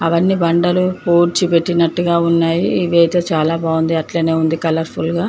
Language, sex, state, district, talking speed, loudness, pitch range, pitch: Telugu, female, Andhra Pradesh, Chittoor, 145 wpm, -15 LUFS, 165-175 Hz, 170 Hz